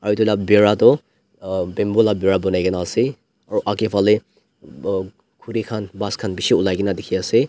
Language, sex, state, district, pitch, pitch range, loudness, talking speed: Nagamese, male, Nagaland, Dimapur, 105 Hz, 95-105 Hz, -19 LUFS, 185 wpm